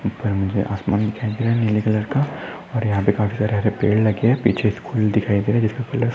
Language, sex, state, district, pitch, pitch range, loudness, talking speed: Hindi, male, Maharashtra, Dhule, 105 Hz, 105-115 Hz, -20 LUFS, 280 wpm